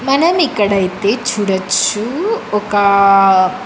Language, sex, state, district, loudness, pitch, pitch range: Telugu, female, Andhra Pradesh, Krishna, -13 LUFS, 205 Hz, 195-250 Hz